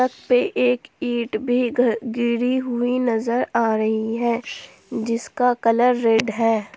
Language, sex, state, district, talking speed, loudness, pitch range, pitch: Hindi, female, Jharkhand, Palamu, 140 wpm, -21 LUFS, 230-250 Hz, 240 Hz